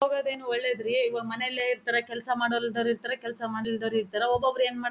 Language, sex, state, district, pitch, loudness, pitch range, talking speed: Kannada, female, Karnataka, Bellary, 240 Hz, -28 LUFS, 235-255 Hz, 185 wpm